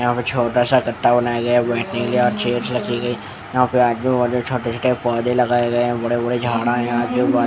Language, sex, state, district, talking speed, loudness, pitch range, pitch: Hindi, male, Odisha, Khordha, 225 wpm, -19 LUFS, 120-125 Hz, 120 Hz